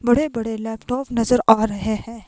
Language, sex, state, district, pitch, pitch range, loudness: Hindi, female, Himachal Pradesh, Shimla, 230 Hz, 220-245 Hz, -20 LUFS